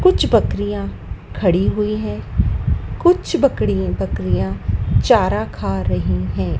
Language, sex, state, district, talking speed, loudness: Hindi, female, Madhya Pradesh, Dhar, 110 wpm, -18 LUFS